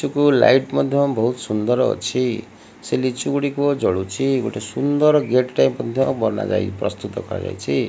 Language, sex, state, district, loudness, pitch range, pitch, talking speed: Odia, male, Odisha, Malkangiri, -20 LUFS, 115-140 Hz, 125 Hz, 150 wpm